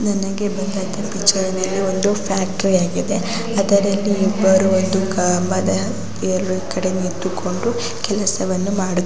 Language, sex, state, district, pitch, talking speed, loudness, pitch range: Kannada, female, Karnataka, Gulbarga, 195 Hz, 100 wpm, -19 LUFS, 185-200 Hz